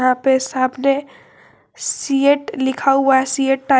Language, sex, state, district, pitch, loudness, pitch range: Hindi, female, Jharkhand, Garhwa, 270 Hz, -17 LUFS, 265-275 Hz